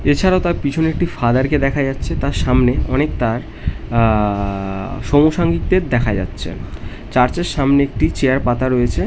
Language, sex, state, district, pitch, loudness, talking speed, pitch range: Bengali, male, West Bengal, North 24 Parganas, 130 Hz, -17 LUFS, 130 wpm, 105-145 Hz